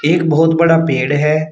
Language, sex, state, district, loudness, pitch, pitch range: Hindi, male, Uttar Pradesh, Shamli, -13 LUFS, 155 Hz, 150-165 Hz